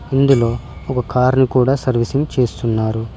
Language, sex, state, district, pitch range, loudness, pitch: Telugu, male, Telangana, Mahabubabad, 115-130 Hz, -17 LUFS, 125 Hz